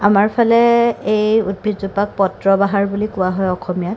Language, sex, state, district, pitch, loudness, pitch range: Assamese, female, Assam, Kamrup Metropolitan, 200 Hz, -16 LUFS, 195-215 Hz